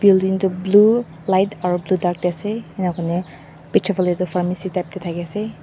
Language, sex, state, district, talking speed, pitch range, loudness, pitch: Nagamese, female, Mizoram, Aizawl, 200 wpm, 175-195 Hz, -20 LUFS, 185 Hz